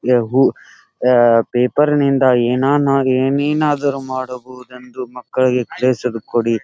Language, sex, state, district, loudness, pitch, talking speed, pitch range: Kannada, male, Karnataka, Dharwad, -16 LUFS, 130 Hz, 90 wpm, 125-135 Hz